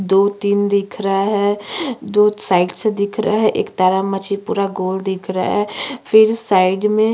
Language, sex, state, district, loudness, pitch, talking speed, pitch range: Hindi, female, Chhattisgarh, Sukma, -17 LUFS, 200 Hz, 195 wpm, 195-210 Hz